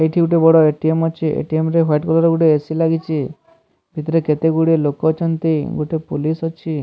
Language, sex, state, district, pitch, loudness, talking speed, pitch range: Odia, male, Odisha, Sambalpur, 160 Hz, -17 LUFS, 220 wpm, 155-165 Hz